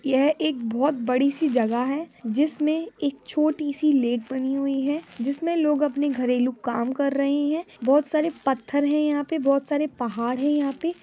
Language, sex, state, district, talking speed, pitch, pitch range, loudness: Hindi, female, West Bengal, Purulia, 190 wpm, 280 Hz, 260-300 Hz, -24 LUFS